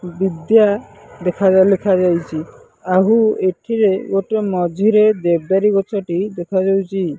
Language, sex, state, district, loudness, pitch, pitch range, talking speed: Odia, male, Odisha, Nuapada, -16 LUFS, 190 Hz, 180-205 Hz, 85 wpm